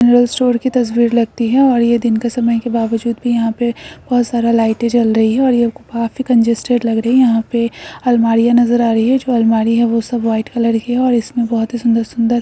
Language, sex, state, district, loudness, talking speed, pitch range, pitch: Hindi, female, Uttarakhand, Uttarkashi, -14 LUFS, 235 wpm, 230-245 Hz, 235 Hz